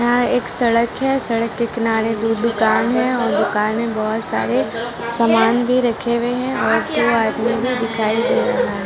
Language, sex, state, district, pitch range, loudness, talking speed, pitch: Hindi, female, Bihar, Gopalganj, 225-240 Hz, -18 LUFS, 190 wpm, 230 Hz